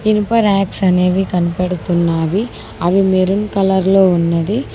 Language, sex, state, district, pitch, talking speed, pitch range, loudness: Telugu, female, Telangana, Mahabubabad, 190 Hz, 100 wpm, 180-200 Hz, -15 LUFS